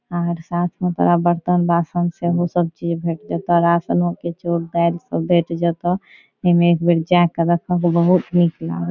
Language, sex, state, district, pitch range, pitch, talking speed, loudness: Maithili, female, Bihar, Saharsa, 170-175 Hz, 170 Hz, 180 wpm, -18 LUFS